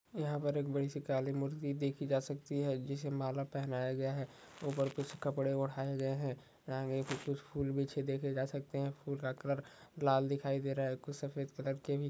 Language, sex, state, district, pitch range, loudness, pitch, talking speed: Hindi, male, Maharashtra, Solapur, 135-140 Hz, -38 LUFS, 140 Hz, 220 wpm